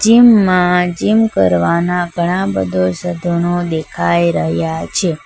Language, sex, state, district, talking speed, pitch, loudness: Gujarati, female, Gujarat, Valsad, 115 wpm, 170 Hz, -14 LUFS